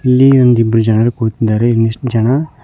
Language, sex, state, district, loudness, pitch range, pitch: Kannada, male, Karnataka, Koppal, -12 LUFS, 115-125 Hz, 120 Hz